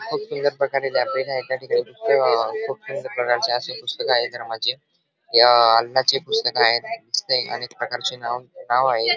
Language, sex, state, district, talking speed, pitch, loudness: Marathi, male, Maharashtra, Dhule, 130 wpm, 135 Hz, -21 LUFS